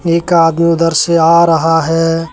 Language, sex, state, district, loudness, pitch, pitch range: Hindi, male, Jharkhand, Deoghar, -11 LUFS, 165 Hz, 165-170 Hz